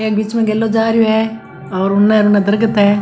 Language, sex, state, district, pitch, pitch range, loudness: Marwari, female, Rajasthan, Nagaur, 215 Hz, 205-225 Hz, -14 LUFS